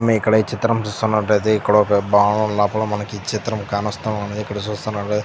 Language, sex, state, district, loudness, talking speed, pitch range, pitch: Telugu, male, Andhra Pradesh, Krishna, -19 LUFS, 170 wpm, 105-110 Hz, 105 Hz